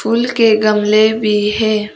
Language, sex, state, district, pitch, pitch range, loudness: Hindi, female, Arunachal Pradesh, Papum Pare, 215 Hz, 210-225 Hz, -13 LUFS